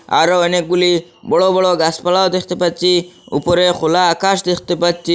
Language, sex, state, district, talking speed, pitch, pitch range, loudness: Bengali, male, Assam, Hailakandi, 140 wpm, 175 Hz, 175-180 Hz, -15 LUFS